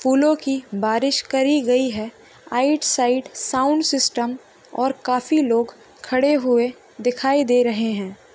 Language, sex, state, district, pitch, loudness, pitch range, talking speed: Hindi, female, Bihar, Bhagalpur, 255 Hz, -20 LUFS, 240-275 Hz, 135 wpm